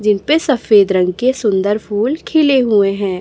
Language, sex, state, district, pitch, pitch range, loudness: Hindi, female, Chhattisgarh, Raipur, 210 Hz, 195-265 Hz, -14 LUFS